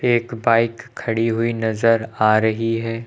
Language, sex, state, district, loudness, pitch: Hindi, male, Uttar Pradesh, Lucknow, -19 LUFS, 115 Hz